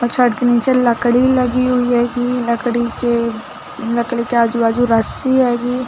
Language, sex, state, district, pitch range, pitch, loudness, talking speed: Hindi, female, Chhattisgarh, Rajnandgaon, 235-250 Hz, 240 Hz, -15 LUFS, 155 wpm